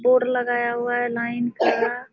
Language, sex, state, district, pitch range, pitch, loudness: Hindi, female, Bihar, Supaul, 235-245 Hz, 240 Hz, -22 LUFS